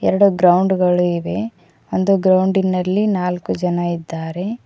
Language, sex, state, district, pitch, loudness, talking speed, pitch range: Kannada, female, Karnataka, Koppal, 185 Hz, -17 LUFS, 115 wpm, 175-195 Hz